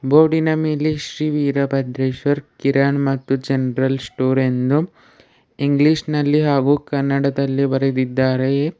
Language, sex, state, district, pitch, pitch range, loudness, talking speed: Kannada, male, Karnataka, Bidar, 140 Hz, 135-150 Hz, -18 LUFS, 95 wpm